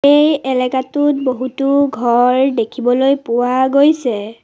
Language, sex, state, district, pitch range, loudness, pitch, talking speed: Assamese, female, Assam, Sonitpur, 245-280 Hz, -14 LUFS, 260 Hz, 95 wpm